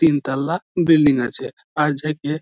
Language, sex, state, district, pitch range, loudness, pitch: Bengali, male, West Bengal, Malda, 140-160 Hz, -19 LUFS, 150 Hz